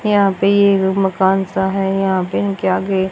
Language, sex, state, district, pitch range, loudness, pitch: Hindi, female, Haryana, Rohtak, 190-195 Hz, -16 LUFS, 190 Hz